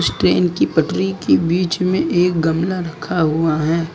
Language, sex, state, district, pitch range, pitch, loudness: Hindi, male, Uttar Pradesh, Lucknow, 105-175 Hz, 160 Hz, -17 LUFS